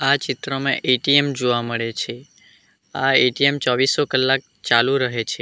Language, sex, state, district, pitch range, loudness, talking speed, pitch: Gujarati, male, Gujarat, Valsad, 120-140 Hz, -19 LUFS, 145 wpm, 130 Hz